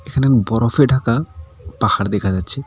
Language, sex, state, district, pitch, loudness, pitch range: Bengali, male, West Bengal, Cooch Behar, 115 Hz, -17 LUFS, 95-135 Hz